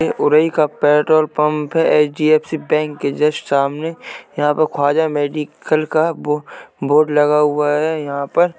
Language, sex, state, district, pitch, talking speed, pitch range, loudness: Hindi, male, Uttar Pradesh, Jalaun, 150 Hz, 175 wpm, 150-155 Hz, -16 LUFS